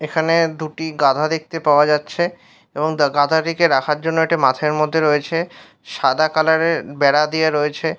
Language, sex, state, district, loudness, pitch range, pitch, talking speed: Bengali, male, West Bengal, Paschim Medinipur, -17 LUFS, 150-165 Hz, 155 Hz, 160 wpm